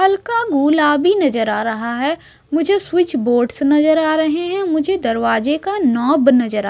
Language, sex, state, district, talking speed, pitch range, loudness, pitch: Hindi, female, Odisha, Sambalpur, 170 wpm, 240-345 Hz, -16 LUFS, 300 Hz